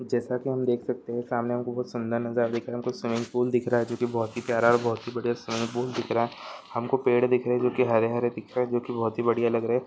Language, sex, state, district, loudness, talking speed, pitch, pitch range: Hindi, male, Andhra Pradesh, Krishna, -27 LUFS, 330 wpm, 120 Hz, 115-125 Hz